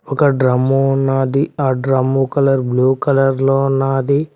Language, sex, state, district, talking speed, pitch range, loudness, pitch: Telugu, male, Telangana, Mahabubabad, 135 wpm, 135-140 Hz, -15 LUFS, 135 Hz